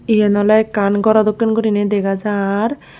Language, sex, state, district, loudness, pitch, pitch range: Chakma, female, Tripura, Unakoti, -15 LUFS, 210 Hz, 205-220 Hz